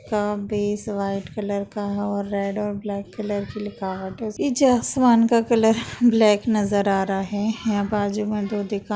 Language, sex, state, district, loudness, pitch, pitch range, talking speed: Hindi, female, Uttar Pradesh, Jalaun, -22 LUFS, 205 Hz, 200-215 Hz, 185 wpm